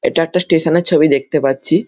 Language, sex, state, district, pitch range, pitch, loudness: Bengali, male, West Bengal, Malda, 145-170 Hz, 165 Hz, -14 LUFS